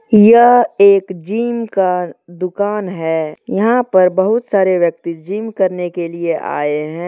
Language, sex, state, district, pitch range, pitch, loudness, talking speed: Hindi, male, Jharkhand, Deoghar, 170-215 Hz, 190 Hz, -14 LUFS, 135 wpm